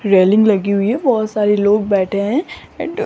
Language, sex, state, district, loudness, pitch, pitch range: Hindi, female, Rajasthan, Jaipur, -15 LUFS, 210 Hz, 200-225 Hz